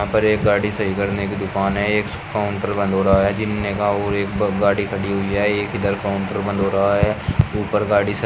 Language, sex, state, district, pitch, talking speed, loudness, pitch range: Hindi, male, Uttar Pradesh, Shamli, 100 Hz, 225 wpm, -20 LUFS, 100-105 Hz